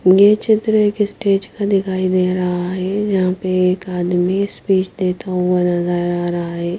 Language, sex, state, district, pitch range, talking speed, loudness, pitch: Hindi, female, Himachal Pradesh, Shimla, 180-200 Hz, 175 wpm, -17 LUFS, 185 Hz